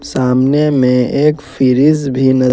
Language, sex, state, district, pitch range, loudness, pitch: Hindi, male, Jharkhand, Ranchi, 130-145 Hz, -12 LUFS, 130 Hz